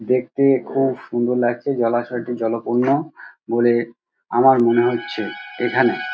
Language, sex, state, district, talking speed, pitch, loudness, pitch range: Bengali, male, West Bengal, Dakshin Dinajpur, 110 wpm, 120 Hz, -19 LUFS, 120-130 Hz